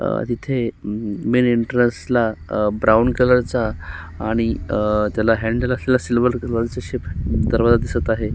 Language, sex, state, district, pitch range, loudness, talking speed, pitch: Marathi, male, Maharashtra, Solapur, 105-125 Hz, -19 LUFS, 110 wpm, 115 Hz